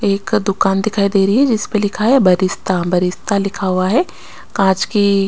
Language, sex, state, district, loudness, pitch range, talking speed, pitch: Hindi, female, Chandigarh, Chandigarh, -15 LUFS, 190-210 Hz, 180 wpm, 195 Hz